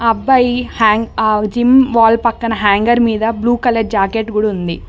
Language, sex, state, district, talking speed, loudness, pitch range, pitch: Telugu, female, Telangana, Mahabubabad, 160 wpm, -13 LUFS, 215-240 Hz, 225 Hz